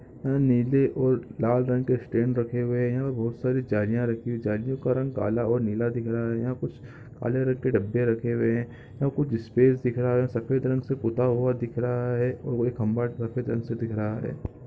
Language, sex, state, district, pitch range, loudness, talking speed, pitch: Hindi, male, Chhattisgarh, Bilaspur, 115-125 Hz, -26 LUFS, 235 wpm, 120 Hz